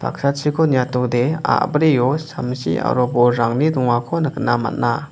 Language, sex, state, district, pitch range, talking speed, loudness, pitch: Garo, male, Meghalaya, West Garo Hills, 120-150 Hz, 95 wpm, -18 LUFS, 130 Hz